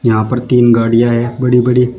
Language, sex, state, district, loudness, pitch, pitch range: Hindi, male, Uttar Pradesh, Shamli, -12 LUFS, 120 Hz, 115-125 Hz